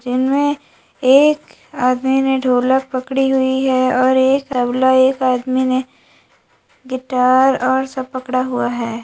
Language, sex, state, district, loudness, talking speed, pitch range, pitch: Hindi, female, Uttar Pradesh, Lalitpur, -16 LUFS, 135 wpm, 255-265 Hz, 260 Hz